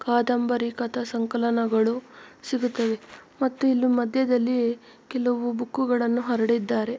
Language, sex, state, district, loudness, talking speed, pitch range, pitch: Kannada, female, Karnataka, Mysore, -25 LUFS, 85 wpm, 235-250 Hz, 240 Hz